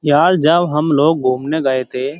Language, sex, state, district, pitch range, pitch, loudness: Hindi, male, Uttar Pradesh, Jyotiba Phule Nagar, 135-160 Hz, 150 Hz, -15 LUFS